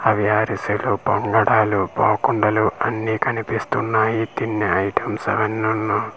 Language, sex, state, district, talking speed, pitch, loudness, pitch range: Telugu, male, Andhra Pradesh, Manyam, 95 wpm, 110 Hz, -20 LUFS, 105-110 Hz